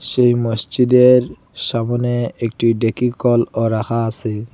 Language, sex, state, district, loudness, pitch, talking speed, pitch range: Bengali, male, Assam, Hailakandi, -16 LUFS, 115 Hz, 105 wpm, 115-125 Hz